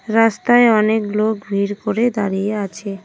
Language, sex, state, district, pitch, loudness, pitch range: Bengali, female, West Bengal, Cooch Behar, 210 Hz, -17 LUFS, 200-220 Hz